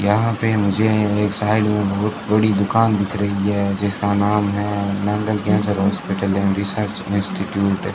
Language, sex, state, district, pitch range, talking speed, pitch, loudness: Hindi, male, Rajasthan, Bikaner, 100-105 Hz, 160 wpm, 100 Hz, -19 LUFS